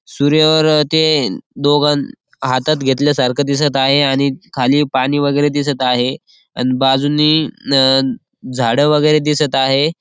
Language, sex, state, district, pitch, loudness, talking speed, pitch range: Marathi, male, Maharashtra, Aurangabad, 145 Hz, -14 LUFS, 120 wpm, 135-150 Hz